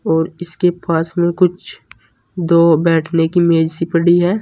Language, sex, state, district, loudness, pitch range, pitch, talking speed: Hindi, male, Uttar Pradesh, Saharanpur, -15 LUFS, 165-175 Hz, 170 Hz, 165 wpm